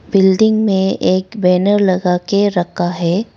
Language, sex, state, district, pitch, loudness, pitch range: Hindi, female, Arunachal Pradesh, Lower Dibang Valley, 190 Hz, -14 LUFS, 180-205 Hz